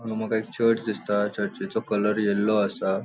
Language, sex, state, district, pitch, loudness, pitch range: Konkani, male, Goa, North and South Goa, 105 Hz, -25 LUFS, 105-110 Hz